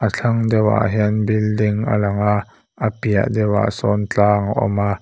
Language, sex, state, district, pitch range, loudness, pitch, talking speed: Mizo, male, Mizoram, Aizawl, 100-110 Hz, -18 LUFS, 105 Hz, 180 wpm